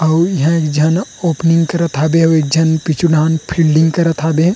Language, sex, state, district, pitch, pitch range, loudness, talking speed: Chhattisgarhi, male, Chhattisgarh, Rajnandgaon, 160 Hz, 160-165 Hz, -13 LUFS, 200 wpm